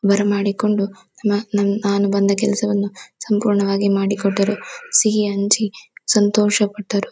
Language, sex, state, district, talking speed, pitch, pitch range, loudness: Kannada, female, Karnataka, Dakshina Kannada, 110 wpm, 205 Hz, 200-210 Hz, -18 LUFS